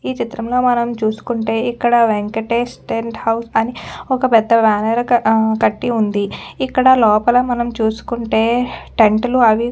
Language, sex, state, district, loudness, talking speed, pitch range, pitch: Telugu, female, Telangana, Nalgonda, -16 LUFS, 150 wpm, 220-240 Hz, 230 Hz